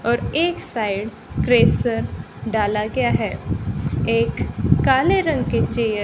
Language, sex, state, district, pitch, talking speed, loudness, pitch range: Hindi, female, Haryana, Rohtak, 210 Hz, 130 wpm, -20 LUFS, 145-240 Hz